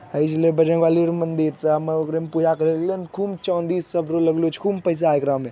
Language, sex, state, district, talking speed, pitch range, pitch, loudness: Magahi, male, Bihar, Jamui, 240 wpm, 160-170 Hz, 165 Hz, -21 LUFS